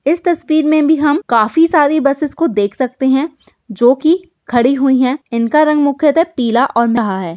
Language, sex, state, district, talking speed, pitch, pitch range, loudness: Hindi, female, Uttar Pradesh, Hamirpur, 180 wpm, 280 Hz, 240-310 Hz, -13 LUFS